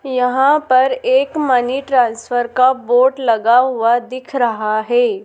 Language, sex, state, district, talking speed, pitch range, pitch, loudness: Hindi, female, Madhya Pradesh, Dhar, 135 wpm, 240-265 Hz, 255 Hz, -15 LUFS